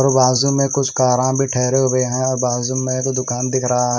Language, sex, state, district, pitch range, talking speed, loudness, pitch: Hindi, male, Haryana, Rohtak, 125-130 Hz, 255 wpm, -17 LUFS, 130 Hz